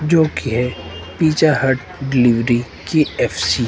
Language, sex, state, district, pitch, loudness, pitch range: Hindi, male, Himachal Pradesh, Shimla, 125 Hz, -17 LUFS, 115-155 Hz